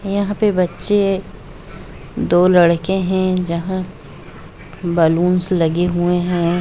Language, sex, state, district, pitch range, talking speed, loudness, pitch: Hindi, female, Jharkhand, Jamtara, 175-190 Hz, 90 wpm, -17 LUFS, 180 Hz